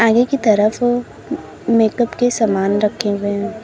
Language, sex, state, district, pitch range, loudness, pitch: Hindi, female, Uttar Pradesh, Lalitpur, 210-240 Hz, -17 LUFS, 225 Hz